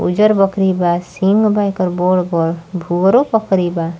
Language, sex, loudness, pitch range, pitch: Bhojpuri, female, -15 LUFS, 175-200 Hz, 185 Hz